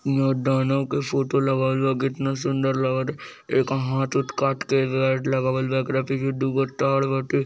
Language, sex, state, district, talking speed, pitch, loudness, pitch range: Bhojpuri, male, Bihar, East Champaran, 115 wpm, 135 Hz, -23 LUFS, 130-135 Hz